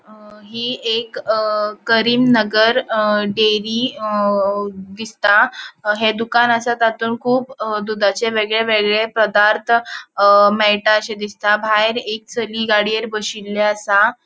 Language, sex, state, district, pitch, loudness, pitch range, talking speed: Konkani, female, Goa, North and South Goa, 215 Hz, -16 LUFS, 210-230 Hz, 115 wpm